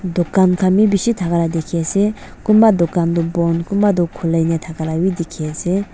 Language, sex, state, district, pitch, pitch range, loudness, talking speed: Nagamese, female, Nagaland, Dimapur, 175 Hz, 165-195 Hz, -17 LUFS, 210 wpm